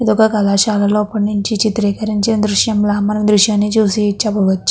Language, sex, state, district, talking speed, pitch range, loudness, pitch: Telugu, female, Andhra Pradesh, Krishna, 140 wpm, 205-215 Hz, -14 LUFS, 210 Hz